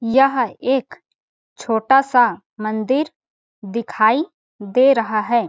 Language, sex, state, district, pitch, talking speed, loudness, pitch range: Hindi, female, Chhattisgarh, Balrampur, 240 Hz, 110 wpm, -18 LUFS, 220-270 Hz